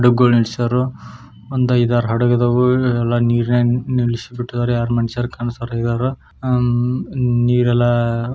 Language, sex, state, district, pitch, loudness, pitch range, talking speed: Kannada, male, Karnataka, Shimoga, 120 Hz, -17 LUFS, 120-125 Hz, 80 wpm